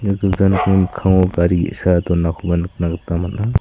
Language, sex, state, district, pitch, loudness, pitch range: Garo, male, Meghalaya, South Garo Hills, 90 Hz, -17 LUFS, 85-95 Hz